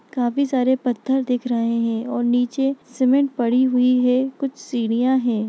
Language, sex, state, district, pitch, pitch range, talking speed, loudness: Hindi, female, Bihar, Jamui, 250 Hz, 240-265 Hz, 165 wpm, -20 LUFS